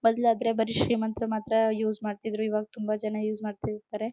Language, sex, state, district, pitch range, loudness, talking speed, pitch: Kannada, female, Karnataka, Chamarajanagar, 215-225 Hz, -28 LUFS, 160 wpm, 220 Hz